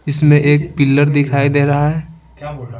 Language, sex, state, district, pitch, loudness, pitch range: Hindi, male, Bihar, Patna, 145 Hz, -13 LUFS, 145-150 Hz